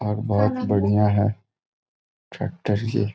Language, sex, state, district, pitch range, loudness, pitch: Hindi, male, Bihar, Gopalganj, 100-105 Hz, -22 LUFS, 105 Hz